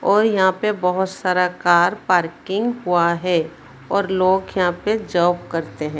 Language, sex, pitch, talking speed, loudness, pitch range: Hindi, female, 180 Hz, 160 wpm, -19 LUFS, 175-190 Hz